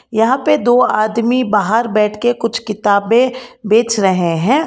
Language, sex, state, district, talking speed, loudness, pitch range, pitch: Hindi, female, Karnataka, Bangalore, 140 wpm, -14 LUFS, 210-245 Hz, 225 Hz